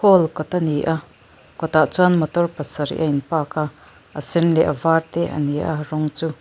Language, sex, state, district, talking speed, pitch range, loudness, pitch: Mizo, female, Mizoram, Aizawl, 235 wpm, 150-165 Hz, -20 LUFS, 155 Hz